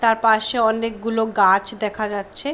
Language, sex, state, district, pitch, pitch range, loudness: Bengali, female, West Bengal, Paschim Medinipur, 220 Hz, 210-230 Hz, -19 LUFS